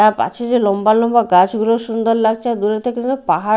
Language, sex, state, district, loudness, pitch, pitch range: Bengali, female, Odisha, Malkangiri, -16 LUFS, 225 Hz, 215-235 Hz